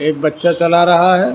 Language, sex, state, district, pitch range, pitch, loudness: Hindi, male, Karnataka, Bangalore, 155-175 Hz, 170 Hz, -12 LUFS